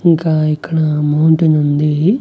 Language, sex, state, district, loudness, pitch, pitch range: Telugu, male, Andhra Pradesh, Annamaya, -13 LUFS, 155 Hz, 150-160 Hz